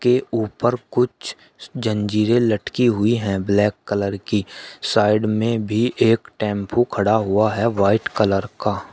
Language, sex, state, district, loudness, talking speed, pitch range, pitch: Hindi, male, Uttar Pradesh, Shamli, -20 LUFS, 140 wpm, 105-115 Hz, 110 Hz